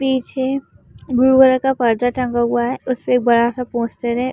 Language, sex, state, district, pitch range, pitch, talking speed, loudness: Hindi, female, Uttar Pradesh, Jalaun, 240-260 Hz, 250 Hz, 195 wpm, -17 LUFS